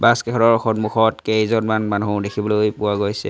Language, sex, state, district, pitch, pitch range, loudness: Assamese, male, Assam, Sonitpur, 110 Hz, 105-110 Hz, -19 LUFS